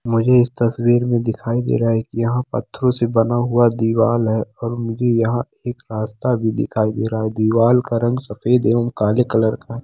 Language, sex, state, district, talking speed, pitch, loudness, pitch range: Hindi, male, Andhra Pradesh, Krishna, 205 wpm, 115 Hz, -18 LUFS, 110-120 Hz